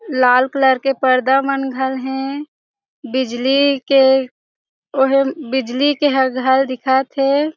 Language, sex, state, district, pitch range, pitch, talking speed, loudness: Chhattisgarhi, female, Chhattisgarh, Jashpur, 260-275 Hz, 265 Hz, 125 wpm, -16 LUFS